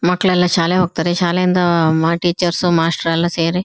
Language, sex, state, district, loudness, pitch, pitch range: Kannada, female, Karnataka, Shimoga, -15 LUFS, 175 Hz, 165-180 Hz